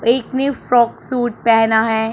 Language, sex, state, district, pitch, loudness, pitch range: Hindi, male, Punjab, Pathankot, 235 Hz, -16 LUFS, 225-250 Hz